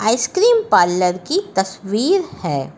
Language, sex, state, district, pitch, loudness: Hindi, female, Uttar Pradesh, Lucknow, 225 Hz, -17 LUFS